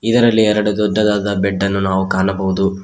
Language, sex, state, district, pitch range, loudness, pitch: Kannada, male, Karnataka, Koppal, 95-105 Hz, -16 LUFS, 100 Hz